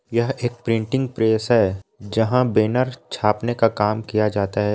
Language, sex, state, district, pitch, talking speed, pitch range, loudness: Hindi, male, Chhattisgarh, Raigarh, 110 Hz, 165 wpm, 105-120 Hz, -21 LUFS